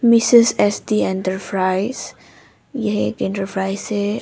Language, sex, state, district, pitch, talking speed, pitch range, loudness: Hindi, female, Arunachal Pradesh, Papum Pare, 205 Hz, 115 wpm, 190-230 Hz, -18 LUFS